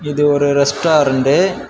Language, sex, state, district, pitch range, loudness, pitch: Tamil, male, Tamil Nadu, Kanyakumari, 140-150 Hz, -14 LUFS, 145 Hz